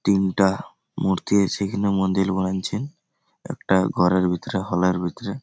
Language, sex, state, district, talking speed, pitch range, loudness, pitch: Bengali, male, West Bengal, Malda, 130 wpm, 95-100 Hz, -22 LUFS, 95 Hz